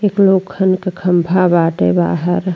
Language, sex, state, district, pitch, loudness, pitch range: Bhojpuri, female, Uttar Pradesh, Ghazipur, 185 Hz, -14 LUFS, 170-190 Hz